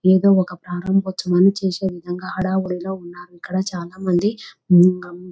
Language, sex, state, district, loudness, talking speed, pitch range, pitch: Telugu, female, Telangana, Nalgonda, -19 LUFS, 125 wpm, 180-190 Hz, 185 Hz